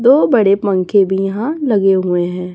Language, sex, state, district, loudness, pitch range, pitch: Hindi, female, Chhattisgarh, Raipur, -14 LUFS, 185-230 Hz, 195 Hz